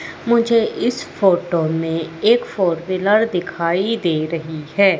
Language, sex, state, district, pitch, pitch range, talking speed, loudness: Hindi, female, Madhya Pradesh, Katni, 180 Hz, 165-220 Hz, 130 wpm, -18 LUFS